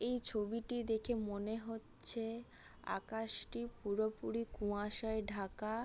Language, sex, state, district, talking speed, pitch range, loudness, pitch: Bengali, female, West Bengal, Jalpaiguri, 100 wpm, 210-230 Hz, -40 LUFS, 220 Hz